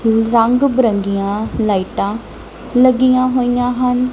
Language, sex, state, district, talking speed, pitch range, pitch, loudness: Punjabi, female, Punjab, Kapurthala, 85 wpm, 220-255 Hz, 245 Hz, -15 LUFS